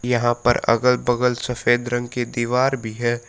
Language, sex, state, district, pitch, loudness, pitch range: Hindi, male, Jharkhand, Palamu, 120 Hz, -20 LUFS, 120-125 Hz